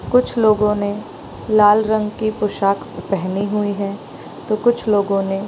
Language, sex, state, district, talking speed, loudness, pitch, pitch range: Hindi, female, Bihar, East Champaran, 165 wpm, -18 LUFS, 210 Hz, 200-215 Hz